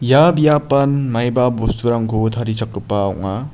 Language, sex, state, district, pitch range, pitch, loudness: Garo, male, Meghalaya, South Garo Hills, 110-140 Hz, 120 Hz, -17 LUFS